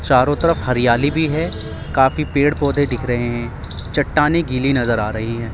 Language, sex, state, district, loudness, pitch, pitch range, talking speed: Hindi, male, Delhi, New Delhi, -18 LUFS, 130 Hz, 120-145 Hz, 185 wpm